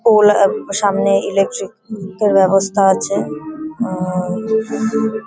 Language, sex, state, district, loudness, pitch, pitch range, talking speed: Bengali, female, West Bengal, Paschim Medinipur, -16 LUFS, 200 Hz, 195-220 Hz, 90 wpm